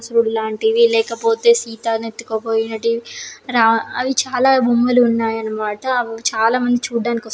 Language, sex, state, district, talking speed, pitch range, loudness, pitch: Telugu, female, Andhra Pradesh, Srikakulam, 120 wpm, 225-240 Hz, -17 LUFS, 230 Hz